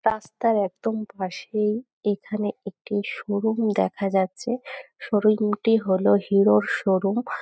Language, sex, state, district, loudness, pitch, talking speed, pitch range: Bengali, female, West Bengal, North 24 Parganas, -24 LUFS, 210 Hz, 135 wpm, 195-220 Hz